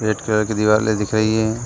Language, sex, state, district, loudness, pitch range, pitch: Hindi, male, Uttar Pradesh, Jalaun, -18 LUFS, 105-110 Hz, 110 Hz